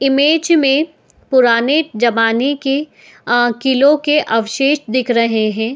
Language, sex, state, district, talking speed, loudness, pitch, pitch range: Hindi, female, Uttar Pradesh, Etah, 125 wpm, -14 LUFS, 265 Hz, 235-290 Hz